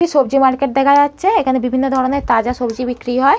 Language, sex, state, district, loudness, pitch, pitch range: Bengali, female, West Bengal, North 24 Parganas, -15 LUFS, 265 Hz, 250-280 Hz